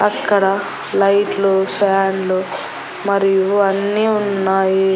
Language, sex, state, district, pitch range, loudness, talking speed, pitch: Telugu, female, Andhra Pradesh, Annamaya, 190-200 Hz, -16 LUFS, 75 wpm, 195 Hz